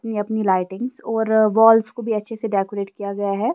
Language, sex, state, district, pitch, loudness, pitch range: Hindi, female, Himachal Pradesh, Shimla, 215 Hz, -20 LUFS, 200-225 Hz